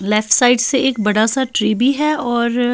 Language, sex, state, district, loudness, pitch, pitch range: Hindi, female, Bihar, Patna, -15 LUFS, 240 Hz, 215-265 Hz